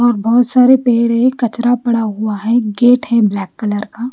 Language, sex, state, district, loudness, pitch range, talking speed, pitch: Hindi, female, Chandigarh, Chandigarh, -13 LUFS, 220-245 Hz, 205 wpm, 235 Hz